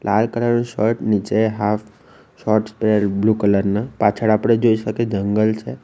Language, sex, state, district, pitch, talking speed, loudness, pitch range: Gujarati, male, Gujarat, Valsad, 110 Hz, 175 wpm, -18 LUFS, 105-110 Hz